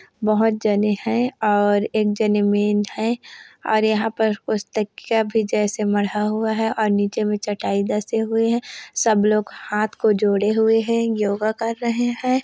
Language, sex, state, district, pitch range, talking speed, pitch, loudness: Hindi, female, Chhattisgarh, Korba, 210-225 Hz, 170 wpm, 215 Hz, -20 LUFS